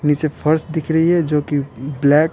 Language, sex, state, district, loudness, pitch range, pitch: Hindi, male, Bihar, Patna, -18 LUFS, 145-160 Hz, 150 Hz